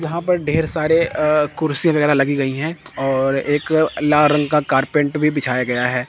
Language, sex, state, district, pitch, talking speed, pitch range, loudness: Hindi, male, Chandigarh, Chandigarh, 150 Hz, 195 wpm, 135-155 Hz, -18 LUFS